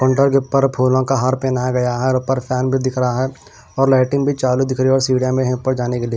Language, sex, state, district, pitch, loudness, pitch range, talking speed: Hindi, male, Punjab, Pathankot, 130 Hz, -17 LUFS, 125-135 Hz, 290 wpm